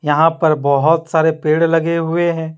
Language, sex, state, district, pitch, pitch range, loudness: Hindi, male, Jharkhand, Deoghar, 160 Hz, 155-165 Hz, -15 LUFS